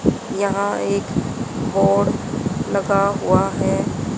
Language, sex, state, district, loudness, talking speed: Hindi, female, Haryana, Charkhi Dadri, -20 LUFS, 85 wpm